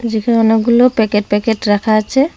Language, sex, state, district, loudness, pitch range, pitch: Bengali, female, Assam, Hailakandi, -13 LUFS, 215-235 Hz, 225 Hz